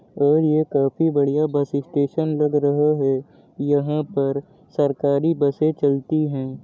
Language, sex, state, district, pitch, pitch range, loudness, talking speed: Hindi, male, Uttar Pradesh, Jyotiba Phule Nagar, 145 Hz, 140-155 Hz, -21 LUFS, 145 wpm